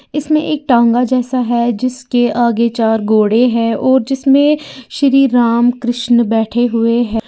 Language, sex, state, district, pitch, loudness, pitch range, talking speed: Hindi, female, Uttar Pradesh, Lalitpur, 240 Hz, -13 LUFS, 235-265 Hz, 150 wpm